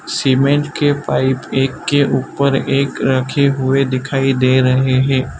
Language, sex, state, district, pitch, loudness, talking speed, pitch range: Hindi, male, Gujarat, Valsad, 135 Hz, -15 LUFS, 145 wpm, 130-140 Hz